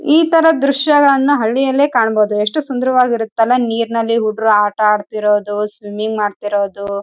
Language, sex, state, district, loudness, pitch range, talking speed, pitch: Kannada, female, Karnataka, Raichur, -14 LUFS, 210-265 Hz, 105 wpm, 225 Hz